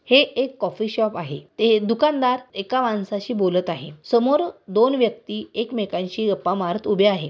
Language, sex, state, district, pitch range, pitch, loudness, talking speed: Marathi, female, Maharashtra, Aurangabad, 185-245 Hz, 215 Hz, -21 LUFS, 165 wpm